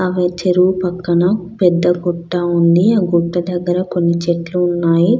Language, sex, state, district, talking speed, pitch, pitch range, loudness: Telugu, female, Andhra Pradesh, Krishna, 140 wpm, 175 Hz, 170-180 Hz, -15 LUFS